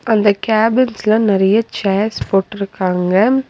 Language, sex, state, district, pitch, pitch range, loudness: Tamil, female, Tamil Nadu, Nilgiris, 210 Hz, 195-225 Hz, -15 LUFS